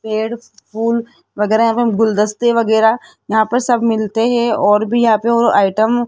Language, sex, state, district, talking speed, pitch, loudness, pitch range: Hindi, female, Rajasthan, Jaipur, 185 wpm, 225 Hz, -15 LUFS, 220-235 Hz